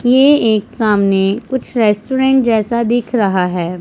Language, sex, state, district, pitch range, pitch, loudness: Hindi, male, Punjab, Pathankot, 200-250 Hz, 225 Hz, -14 LUFS